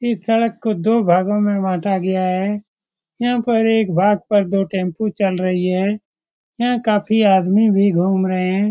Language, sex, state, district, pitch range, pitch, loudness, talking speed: Hindi, male, Bihar, Supaul, 190-220 Hz, 205 Hz, -17 LUFS, 180 wpm